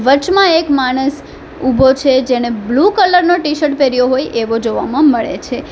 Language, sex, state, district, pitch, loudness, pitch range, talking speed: Gujarati, female, Gujarat, Valsad, 270 Hz, -13 LUFS, 255-300 Hz, 170 wpm